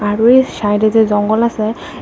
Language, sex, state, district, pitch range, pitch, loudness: Bengali, female, Tripura, West Tripura, 210-235 Hz, 220 Hz, -13 LUFS